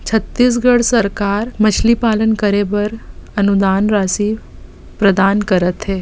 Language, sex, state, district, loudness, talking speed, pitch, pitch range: Chhattisgarhi, female, Chhattisgarh, Bastar, -15 LUFS, 100 wpm, 210 Hz, 200-225 Hz